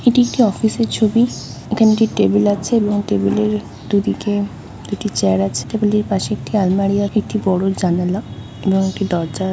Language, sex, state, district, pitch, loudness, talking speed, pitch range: Bengali, female, West Bengal, North 24 Parganas, 200 Hz, -17 LUFS, 170 wpm, 170-215 Hz